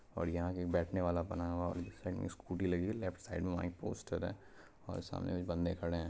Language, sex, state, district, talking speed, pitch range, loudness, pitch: Hindi, male, Bihar, Purnia, 275 wpm, 85-90 Hz, -40 LUFS, 90 Hz